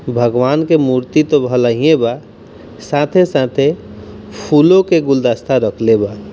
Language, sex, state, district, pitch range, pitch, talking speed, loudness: Hindi, male, Bihar, East Champaran, 115-155 Hz, 125 Hz, 115 wpm, -13 LUFS